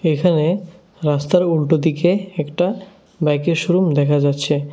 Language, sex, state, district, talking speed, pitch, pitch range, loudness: Bengali, male, Tripura, West Tripura, 100 wpm, 165 Hz, 150-180 Hz, -18 LUFS